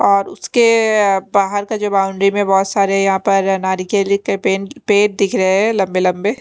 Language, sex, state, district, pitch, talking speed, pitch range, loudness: Hindi, female, Chandigarh, Chandigarh, 200 Hz, 205 wpm, 195-205 Hz, -15 LUFS